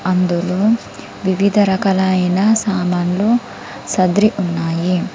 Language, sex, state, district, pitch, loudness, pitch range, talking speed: Telugu, female, Telangana, Komaram Bheem, 190 Hz, -16 LUFS, 180-200 Hz, 70 wpm